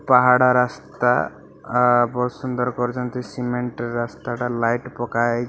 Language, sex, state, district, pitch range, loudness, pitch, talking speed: Odia, male, Odisha, Malkangiri, 120-125 Hz, -21 LUFS, 125 Hz, 140 wpm